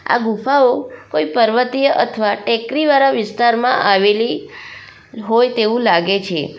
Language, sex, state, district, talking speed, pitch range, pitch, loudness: Gujarati, female, Gujarat, Valsad, 110 wpm, 210-255 Hz, 230 Hz, -15 LUFS